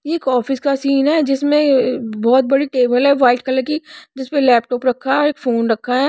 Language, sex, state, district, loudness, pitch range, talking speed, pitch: Hindi, female, Odisha, Nuapada, -16 LUFS, 250-280 Hz, 215 wpm, 265 Hz